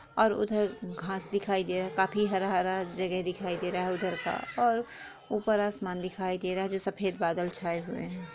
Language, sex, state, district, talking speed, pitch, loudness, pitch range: Hindi, female, Bihar, Lakhisarai, 215 wpm, 190 Hz, -31 LUFS, 180-200 Hz